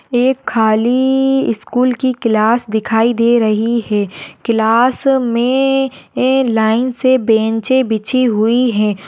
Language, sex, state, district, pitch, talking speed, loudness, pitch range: Hindi, female, Maharashtra, Aurangabad, 235 Hz, 120 wpm, -14 LUFS, 220-255 Hz